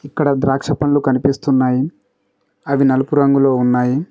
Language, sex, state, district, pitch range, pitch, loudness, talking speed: Telugu, male, Telangana, Mahabubabad, 130-145 Hz, 140 Hz, -16 LUFS, 115 wpm